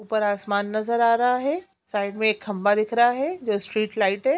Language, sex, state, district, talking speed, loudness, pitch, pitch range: Hindi, female, Bihar, Jamui, 235 wpm, -23 LUFS, 215 Hz, 205-240 Hz